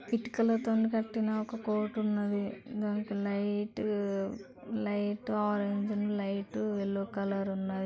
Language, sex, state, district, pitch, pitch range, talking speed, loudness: Telugu, female, Andhra Pradesh, Srikakulam, 210 Hz, 200-215 Hz, 70 wpm, -33 LUFS